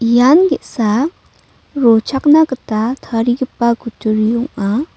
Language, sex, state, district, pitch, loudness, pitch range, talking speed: Garo, female, Meghalaya, North Garo Hills, 240 Hz, -14 LUFS, 225-275 Hz, 85 wpm